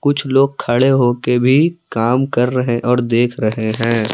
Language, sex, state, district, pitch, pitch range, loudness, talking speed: Hindi, male, Jharkhand, Palamu, 125 Hz, 115-135 Hz, -15 LUFS, 190 wpm